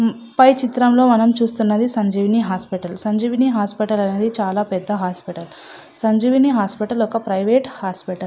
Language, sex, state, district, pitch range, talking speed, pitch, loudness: Telugu, female, Andhra Pradesh, Anantapur, 195-240 Hz, 160 wpm, 220 Hz, -18 LUFS